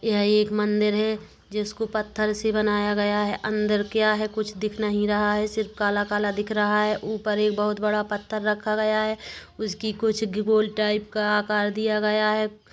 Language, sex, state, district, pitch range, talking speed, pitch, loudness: Hindi, male, Chhattisgarh, Kabirdham, 210-215 Hz, 200 wpm, 210 Hz, -24 LUFS